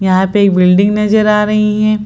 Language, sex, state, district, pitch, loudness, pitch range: Hindi, female, Bihar, Lakhisarai, 210 Hz, -11 LUFS, 190-210 Hz